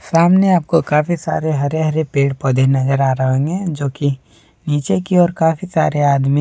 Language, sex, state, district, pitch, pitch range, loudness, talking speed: Hindi, male, Jharkhand, Deoghar, 150 Hz, 135-165 Hz, -16 LUFS, 185 wpm